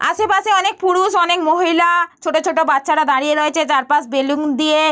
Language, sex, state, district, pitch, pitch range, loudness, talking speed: Bengali, female, West Bengal, Jalpaiguri, 315 Hz, 300-350 Hz, -15 LUFS, 160 wpm